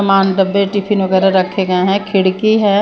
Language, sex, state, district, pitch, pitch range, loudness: Hindi, female, Maharashtra, Mumbai Suburban, 195 Hz, 190-200 Hz, -14 LUFS